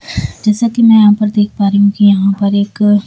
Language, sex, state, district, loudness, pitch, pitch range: Hindi, female, Bihar, Patna, -11 LUFS, 205 Hz, 200-210 Hz